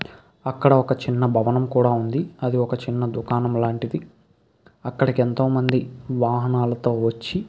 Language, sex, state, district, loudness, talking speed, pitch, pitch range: Telugu, male, Andhra Pradesh, Krishna, -22 LUFS, 130 wpm, 125 Hz, 120-130 Hz